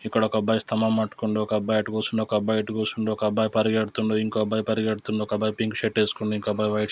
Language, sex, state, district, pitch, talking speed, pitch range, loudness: Telugu, male, Telangana, Nalgonda, 110 Hz, 245 wpm, 105-110 Hz, -25 LUFS